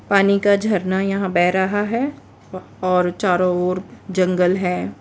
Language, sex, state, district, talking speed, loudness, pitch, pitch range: Hindi, female, Gujarat, Valsad, 145 wpm, -19 LUFS, 185 Hz, 180-200 Hz